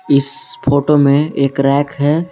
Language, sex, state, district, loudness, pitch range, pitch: Hindi, male, Jharkhand, Garhwa, -14 LUFS, 140-150 Hz, 140 Hz